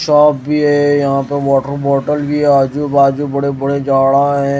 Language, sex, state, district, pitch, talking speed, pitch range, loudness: Hindi, male, Odisha, Malkangiri, 140 Hz, 195 wpm, 140-145 Hz, -13 LUFS